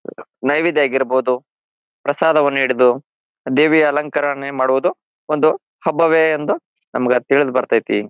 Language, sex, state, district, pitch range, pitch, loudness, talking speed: Kannada, male, Karnataka, Bijapur, 130-155 Hz, 145 Hz, -17 LUFS, 110 wpm